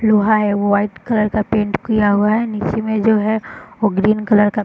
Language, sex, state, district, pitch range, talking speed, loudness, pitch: Hindi, female, Bihar, Darbhanga, 205-220 Hz, 245 wpm, -16 LUFS, 215 Hz